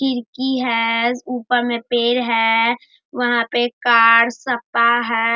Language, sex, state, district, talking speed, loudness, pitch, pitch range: Hindi, male, Bihar, Darbhanga, 135 wpm, -17 LUFS, 240 Hz, 230-250 Hz